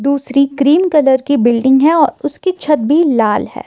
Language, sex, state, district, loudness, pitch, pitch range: Hindi, female, Himachal Pradesh, Shimla, -12 LUFS, 280 Hz, 265-305 Hz